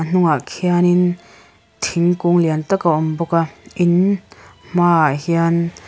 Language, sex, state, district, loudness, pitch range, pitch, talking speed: Mizo, female, Mizoram, Aizawl, -17 LUFS, 155-175 Hz, 170 Hz, 120 wpm